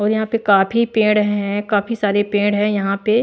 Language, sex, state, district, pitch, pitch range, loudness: Hindi, female, Maharashtra, Washim, 205 Hz, 205-220 Hz, -17 LUFS